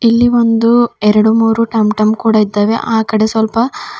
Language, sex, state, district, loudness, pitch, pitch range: Kannada, female, Karnataka, Bidar, -12 LUFS, 225 Hz, 215-230 Hz